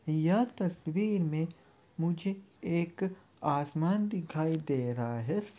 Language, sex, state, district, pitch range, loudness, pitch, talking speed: Hindi, male, Chhattisgarh, Kabirdham, 155-195 Hz, -33 LUFS, 170 Hz, 105 wpm